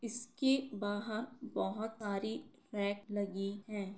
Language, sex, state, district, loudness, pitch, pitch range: Hindi, female, Bihar, Kishanganj, -38 LUFS, 215 Hz, 205-240 Hz